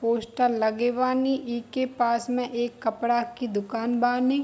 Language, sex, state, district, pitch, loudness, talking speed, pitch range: Hindi, female, Bihar, Darbhanga, 240 Hz, -26 LUFS, 160 wpm, 235-250 Hz